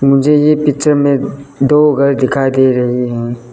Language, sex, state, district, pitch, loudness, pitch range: Hindi, male, Arunachal Pradesh, Lower Dibang Valley, 135 Hz, -12 LUFS, 130-145 Hz